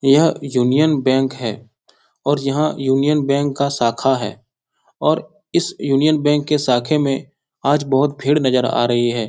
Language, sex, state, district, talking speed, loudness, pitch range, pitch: Hindi, male, Bihar, Jahanabad, 160 wpm, -18 LUFS, 125-145 Hz, 140 Hz